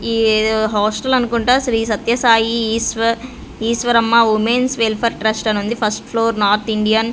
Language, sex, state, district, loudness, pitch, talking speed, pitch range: Telugu, female, Andhra Pradesh, Sri Satya Sai, -16 LUFS, 230 Hz, 150 wpm, 220-235 Hz